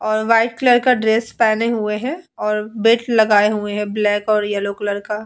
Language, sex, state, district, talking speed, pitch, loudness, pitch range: Hindi, female, Uttar Pradesh, Etah, 205 wpm, 215 Hz, -17 LUFS, 210-230 Hz